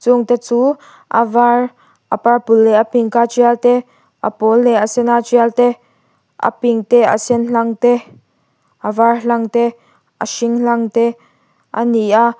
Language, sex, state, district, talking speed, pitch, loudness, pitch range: Mizo, female, Mizoram, Aizawl, 190 wpm, 235 Hz, -14 LUFS, 230-240 Hz